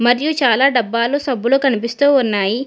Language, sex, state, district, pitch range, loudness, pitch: Telugu, female, Telangana, Hyderabad, 235-275 Hz, -15 LUFS, 255 Hz